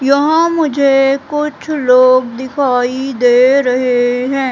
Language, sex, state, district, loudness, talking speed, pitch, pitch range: Hindi, female, Madhya Pradesh, Katni, -12 LUFS, 105 wpm, 265 Hz, 250-280 Hz